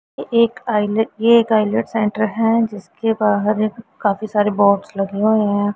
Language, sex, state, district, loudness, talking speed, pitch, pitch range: Hindi, female, Punjab, Pathankot, -17 LUFS, 175 wpm, 215 Hz, 205-225 Hz